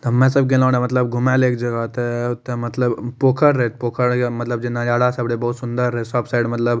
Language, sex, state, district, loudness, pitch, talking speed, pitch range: Maithili, male, Bihar, Madhepura, -19 LUFS, 120 Hz, 240 wpm, 120-125 Hz